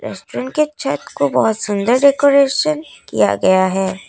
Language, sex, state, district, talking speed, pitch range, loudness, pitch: Hindi, female, Assam, Kamrup Metropolitan, 130 wpm, 190-280 Hz, -16 LUFS, 250 Hz